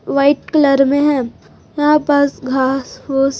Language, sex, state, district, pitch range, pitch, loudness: Hindi, female, Chhattisgarh, Raipur, 270-290 Hz, 275 Hz, -15 LUFS